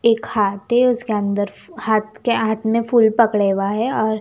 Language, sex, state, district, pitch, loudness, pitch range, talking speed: Hindi, female, Chandigarh, Chandigarh, 220 Hz, -18 LUFS, 205-230 Hz, 185 wpm